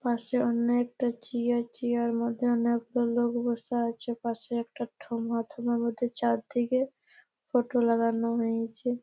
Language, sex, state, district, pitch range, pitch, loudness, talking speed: Bengali, female, West Bengal, Malda, 235-245 Hz, 235 Hz, -29 LUFS, 140 wpm